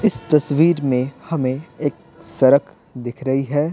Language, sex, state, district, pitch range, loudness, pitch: Hindi, male, Bihar, Patna, 130-160 Hz, -19 LUFS, 145 Hz